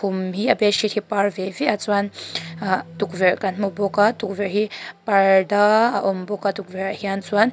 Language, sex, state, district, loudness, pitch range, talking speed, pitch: Mizo, female, Mizoram, Aizawl, -21 LUFS, 195-210 Hz, 230 wpm, 200 Hz